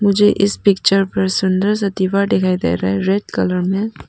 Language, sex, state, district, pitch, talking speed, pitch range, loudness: Hindi, female, Arunachal Pradesh, Papum Pare, 195 Hz, 205 wpm, 185-200 Hz, -16 LUFS